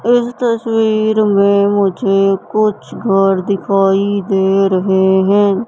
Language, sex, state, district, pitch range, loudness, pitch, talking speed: Hindi, female, Madhya Pradesh, Katni, 195-215 Hz, -13 LUFS, 200 Hz, 105 wpm